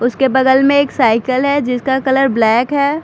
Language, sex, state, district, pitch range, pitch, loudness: Hindi, female, Bihar, Katihar, 250-280 Hz, 265 Hz, -13 LUFS